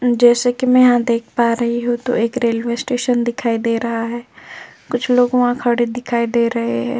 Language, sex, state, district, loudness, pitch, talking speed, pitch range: Hindi, female, Uttar Pradesh, Jyotiba Phule Nagar, -17 LUFS, 240 Hz, 205 wpm, 235-245 Hz